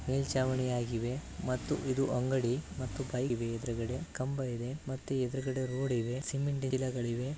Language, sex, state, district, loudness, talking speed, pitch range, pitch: Kannada, male, Karnataka, Bellary, -35 LUFS, 130 wpm, 125-135 Hz, 130 Hz